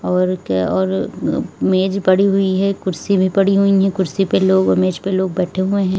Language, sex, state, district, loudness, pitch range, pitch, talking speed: Hindi, female, Uttar Pradesh, Lalitpur, -16 LUFS, 180-195 Hz, 190 Hz, 210 wpm